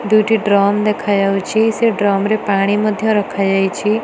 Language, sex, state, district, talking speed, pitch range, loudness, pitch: Odia, female, Odisha, Nuapada, 150 wpm, 200-215 Hz, -15 LUFS, 210 Hz